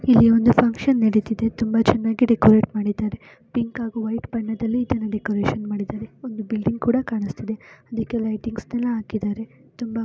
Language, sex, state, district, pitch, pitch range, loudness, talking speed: Kannada, female, Karnataka, Mysore, 225 Hz, 215-235 Hz, -21 LUFS, 145 wpm